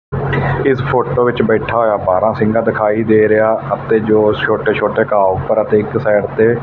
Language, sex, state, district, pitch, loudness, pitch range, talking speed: Punjabi, male, Punjab, Fazilka, 110 Hz, -14 LUFS, 110-120 Hz, 170 wpm